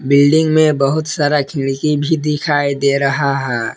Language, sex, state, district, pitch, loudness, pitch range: Hindi, male, Jharkhand, Palamu, 145 Hz, -15 LUFS, 140-150 Hz